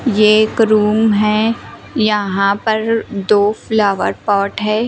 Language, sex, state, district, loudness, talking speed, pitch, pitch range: Hindi, female, Himachal Pradesh, Shimla, -14 LUFS, 125 wpm, 215 Hz, 205-220 Hz